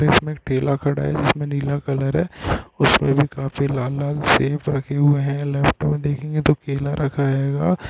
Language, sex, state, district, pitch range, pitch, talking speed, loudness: Hindi, male, Chhattisgarh, Bilaspur, 140-150 Hz, 140 Hz, 175 wpm, -20 LUFS